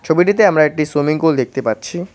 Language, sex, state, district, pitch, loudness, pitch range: Bengali, male, West Bengal, Cooch Behar, 160 Hz, -15 LUFS, 150-175 Hz